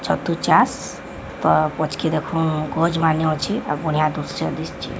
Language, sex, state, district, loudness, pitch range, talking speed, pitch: Odia, female, Odisha, Sambalpur, -21 LUFS, 155-165 Hz, 145 wpm, 155 Hz